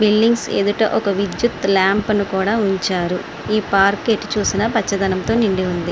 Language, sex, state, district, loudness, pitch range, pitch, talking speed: Telugu, female, Andhra Pradesh, Srikakulam, -18 LUFS, 190-215 Hz, 200 Hz, 150 wpm